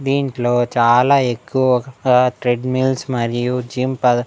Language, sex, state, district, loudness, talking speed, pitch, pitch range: Telugu, male, Andhra Pradesh, Annamaya, -17 LUFS, 100 wpm, 125 Hz, 120-130 Hz